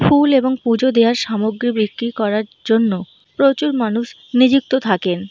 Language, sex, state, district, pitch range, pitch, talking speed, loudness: Bengali, female, Jharkhand, Jamtara, 215-260 Hz, 230 Hz, 135 wpm, -17 LUFS